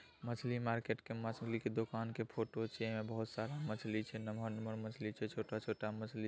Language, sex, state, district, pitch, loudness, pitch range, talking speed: Maithili, male, Bihar, Saharsa, 110 Hz, -43 LUFS, 110-115 Hz, 155 wpm